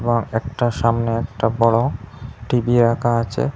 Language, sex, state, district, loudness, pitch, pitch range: Bengali, male, Assam, Hailakandi, -19 LUFS, 115 Hz, 115-120 Hz